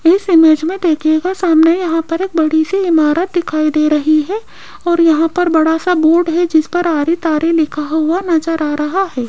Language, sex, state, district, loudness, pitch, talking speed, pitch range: Hindi, female, Rajasthan, Jaipur, -13 LUFS, 330 Hz, 200 wpm, 315-350 Hz